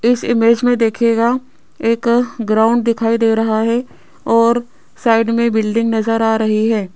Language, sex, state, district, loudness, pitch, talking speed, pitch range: Hindi, female, Rajasthan, Jaipur, -15 LUFS, 230 Hz, 155 wpm, 225-235 Hz